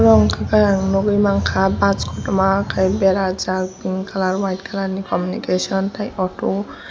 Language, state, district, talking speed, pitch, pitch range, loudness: Kokborok, Tripura, West Tripura, 130 wpm, 190 Hz, 180-195 Hz, -19 LUFS